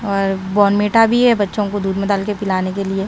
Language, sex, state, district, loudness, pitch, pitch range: Hindi, female, Himachal Pradesh, Shimla, -16 LUFS, 200 Hz, 195-210 Hz